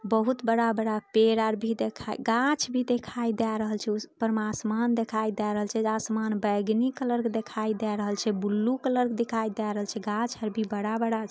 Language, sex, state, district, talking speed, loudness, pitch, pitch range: Maithili, female, Bihar, Samastipur, 210 wpm, -28 LUFS, 220 Hz, 215-230 Hz